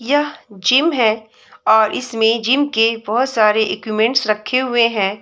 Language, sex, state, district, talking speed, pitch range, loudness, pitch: Hindi, female, Bihar, Samastipur, 150 wpm, 215-255 Hz, -16 LUFS, 225 Hz